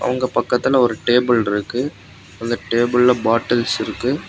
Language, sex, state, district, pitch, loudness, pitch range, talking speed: Tamil, male, Tamil Nadu, Kanyakumari, 120 Hz, -18 LUFS, 115-125 Hz, 125 wpm